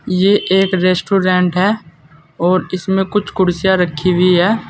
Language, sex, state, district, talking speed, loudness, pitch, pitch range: Hindi, male, Uttar Pradesh, Saharanpur, 140 wpm, -14 LUFS, 185 Hz, 180-190 Hz